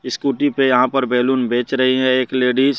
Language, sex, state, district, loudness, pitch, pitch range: Hindi, male, Jharkhand, Deoghar, -17 LUFS, 130 Hz, 125-135 Hz